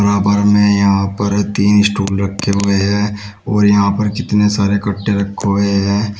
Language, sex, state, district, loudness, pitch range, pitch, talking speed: Hindi, male, Uttar Pradesh, Shamli, -14 LUFS, 100-105 Hz, 100 Hz, 185 wpm